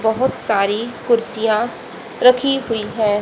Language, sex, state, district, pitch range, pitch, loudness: Hindi, female, Haryana, Rohtak, 215-245 Hz, 230 Hz, -18 LUFS